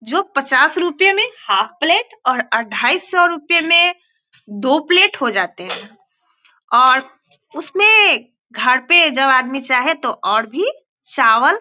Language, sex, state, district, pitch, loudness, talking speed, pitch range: Hindi, female, Bihar, East Champaran, 315 Hz, -14 LUFS, 145 wpm, 255-360 Hz